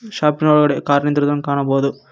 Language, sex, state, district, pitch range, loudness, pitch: Kannada, male, Karnataka, Koppal, 140-150 Hz, -16 LUFS, 145 Hz